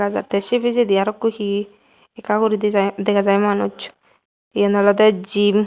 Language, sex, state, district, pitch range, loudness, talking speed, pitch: Chakma, female, Tripura, West Tripura, 200-215 Hz, -18 LUFS, 140 wpm, 205 Hz